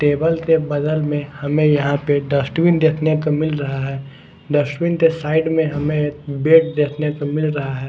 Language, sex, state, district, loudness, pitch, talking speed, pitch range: Hindi, male, Odisha, Khordha, -18 LUFS, 150 Hz, 190 wpm, 145-160 Hz